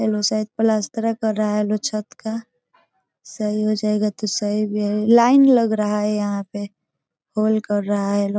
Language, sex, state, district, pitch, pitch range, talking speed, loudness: Hindi, female, Bihar, East Champaran, 215 Hz, 205-220 Hz, 215 wpm, -20 LUFS